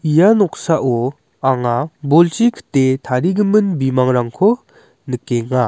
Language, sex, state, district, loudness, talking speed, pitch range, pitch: Garo, male, Meghalaya, West Garo Hills, -16 LUFS, 85 wpm, 125-180 Hz, 140 Hz